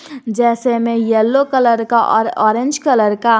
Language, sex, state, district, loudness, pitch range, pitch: Hindi, female, Jharkhand, Garhwa, -14 LUFS, 225-260 Hz, 235 Hz